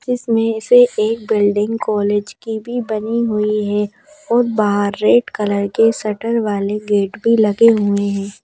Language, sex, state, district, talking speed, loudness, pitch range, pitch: Hindi, female, Madhya Pradesh, Bhopal, 155 wpm, -16 LUFS, 205-230 Hz, 215 Hz